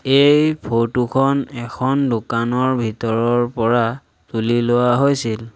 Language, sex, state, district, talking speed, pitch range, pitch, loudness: Assamese, male, Assam, Sonitpur, 110 wpm, 115-135 Hz, 120 Hz, -18 LUFS